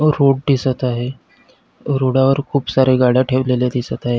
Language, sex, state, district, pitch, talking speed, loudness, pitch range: Marathi, male, Maharashtra, Pune, 130 Hz, 145 wpm, -16 LUFS, 125-135 Hz